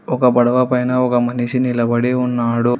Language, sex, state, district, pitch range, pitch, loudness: Telugu, female, Telangana, Hyderabad, 120-125 Hz, 125 Hz, -16 LUFS